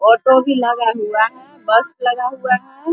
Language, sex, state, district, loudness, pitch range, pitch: Hindi, female, Bihar, Vaishali, -16 LUFS, 230-265 Hz, 250 Hz